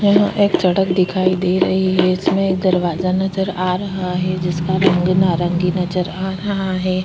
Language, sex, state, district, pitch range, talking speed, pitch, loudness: Hindi, female, Chhattisgarh, Korba, 180-190 Hz, 185 wpm, 185 Hz, -17 LUFS